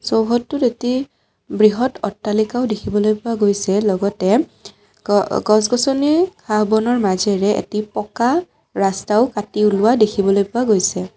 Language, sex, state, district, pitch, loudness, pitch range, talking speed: Assamese, female, Assam, Kamrup Metropolitan, 215 Hz, -17 LUFS, 205-240 Hz, 125 wpm